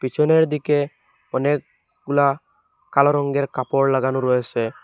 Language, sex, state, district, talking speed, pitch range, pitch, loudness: Bengali, male, Assam, Hailakandi, 100 wpm, 130-150 Hz, 140 Hz, -20 LUFS